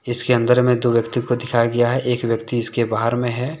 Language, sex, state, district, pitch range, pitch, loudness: Hindi, male, Jharkhand, Deoghar, 115-125 Hz, 120 Hz, -19 LUFS